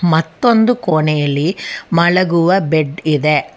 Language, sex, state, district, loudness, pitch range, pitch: Kannada, female, Karnataka, Bangalore, -14 LUFS, 155-180 Hz, 160 Hz